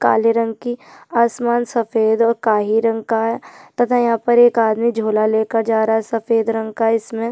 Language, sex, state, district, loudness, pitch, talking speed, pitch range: Hindi, female, Chhattisgarh, Jashpur, -17 LUFS, 225 Hz, 195 wpm, 220-235 Hz